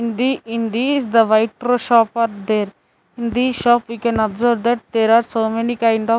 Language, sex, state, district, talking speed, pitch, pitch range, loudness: English, female, Chandigarh, Chandigarh, 205 wpm, 230 Hz, 225-240 Hz, -17 LUFS